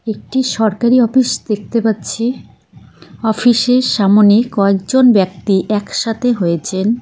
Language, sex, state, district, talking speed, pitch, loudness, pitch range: Bengali, female, West Bengal, Cooch Behar, 95 wpm, 220 Hz, -14 LUFS, 200-240 Hz